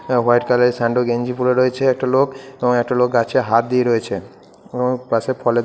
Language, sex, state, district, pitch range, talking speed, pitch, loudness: Bengali, male, West Bengal, Purulia, 120-130 Hz, 210 wpm, 125 Hz, -18 LUFS